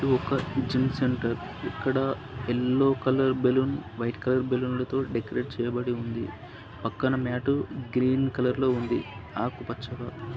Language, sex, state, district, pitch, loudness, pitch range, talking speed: Telugu, male, Andhra Pradesh, Srikakulam, 125 Hz, -28 LUFS, 120-130 Hz, 135 wpm